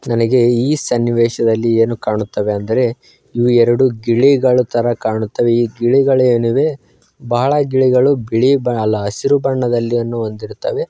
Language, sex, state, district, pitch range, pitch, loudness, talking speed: Kannada, male, Karnataka, Bijapur, 115-130 Hz, 120 Hz, -15 LUFS, 125 wpm